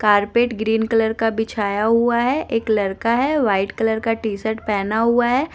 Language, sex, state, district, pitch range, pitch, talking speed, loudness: Hindi, female, Bihar, West Champaran, 215-235 Hz, 225 Hz, 195 wpm, -19 LUFS